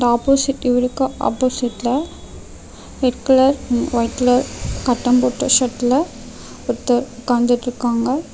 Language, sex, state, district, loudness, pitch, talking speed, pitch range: Tamil, female, Tamil Nadu, Namakkal, -18 LUFS, 250 Hz, 110 wpm, 245-260 Hz